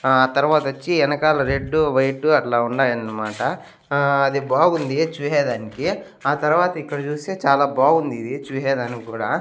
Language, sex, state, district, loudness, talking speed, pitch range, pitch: Telugu, male, Andhra Pradesh, Annamaya, -20 LUFS, 125 wpm, 130-155 Hz, 140 Hz